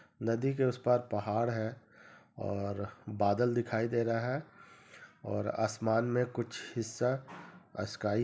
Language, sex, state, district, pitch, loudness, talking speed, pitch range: Hindi, male, Jharkhand, Sahebganj, 115 Hz, -34 LUFS, 140 wpm, 110-120 Hz